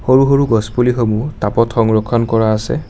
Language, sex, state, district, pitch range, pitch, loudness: Assamese, male, Assam, Kamrup Metropolitan, 110-130 Hz, 115 Hz, -14 LUFS